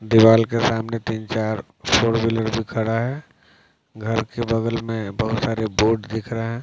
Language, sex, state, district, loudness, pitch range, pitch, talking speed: Hindi, male, Bihar, Patna, -21 LUFS, 110-115 Hz, 115 Hz, 190 wpm